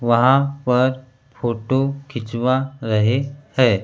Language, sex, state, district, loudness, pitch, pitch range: Hindi, male, Madhya Pradesh, Bhopal, -20 LUFS, 130 Hz, 120-135 Hz